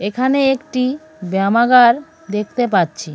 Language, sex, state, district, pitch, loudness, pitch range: Bengali, female, West Bengal, Cooch Behar, 245 Hz, -16 LUFS, 200-270 Hz